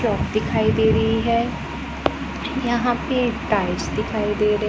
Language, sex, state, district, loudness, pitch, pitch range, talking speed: Hindi, female, Punjab, Pathankot, -21 LUFS, 235 Hz, 215-245 Hz, 130 wpm